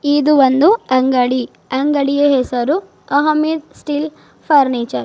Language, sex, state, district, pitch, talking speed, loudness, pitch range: Kannada, female, Karnataka, Bidar, 285 Hz, 105 wpm, -15 LUFS, 255-300 Hz